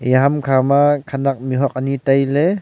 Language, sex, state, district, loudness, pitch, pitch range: Wancho, male, Arunachal Pradesh, Longding, -16 LUFS, 135 Hz, 130-140 Hz